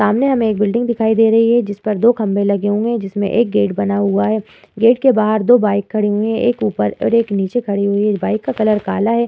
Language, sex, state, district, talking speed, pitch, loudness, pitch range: Hindi, female, Uttar Pradesh, Muzaffarnagar, 270 wpm, 215 Hz, -15 LUFS, 200-230 Hz